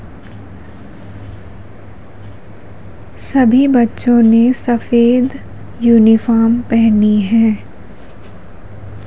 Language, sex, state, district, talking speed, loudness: Hindi, female, Madhya Pradesh, Umaria, 45 wpm, -12 LUFS